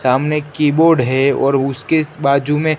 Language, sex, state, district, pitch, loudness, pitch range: Hindi, male, Gujarat, Gandhinagar, 145 Hz, -15 LUFS, 135-155 Hz